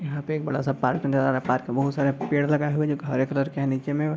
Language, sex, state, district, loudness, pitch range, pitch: Hindi, male, Bihar, East Champaran, -25 LUFS, 135-150 Hz, 140 Hz